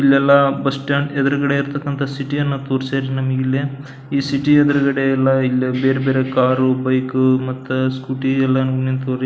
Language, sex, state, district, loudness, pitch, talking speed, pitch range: Kannada, male, Karnataka, Belgaum, -17 LUFS, 135 Hz, 150 wpm, 130-140 Hz